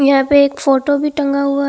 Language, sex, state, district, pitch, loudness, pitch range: Hindi, female, Assam, Hailakandi, 280 Hz, -14 LUFS, 275-285 Hz